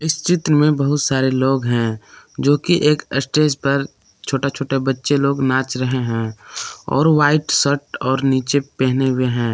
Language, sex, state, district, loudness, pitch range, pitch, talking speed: Hindi, male, Jharkhand, Palamu, -18 LUFS, 130-145 Hz, 135 Hz, 170 wpm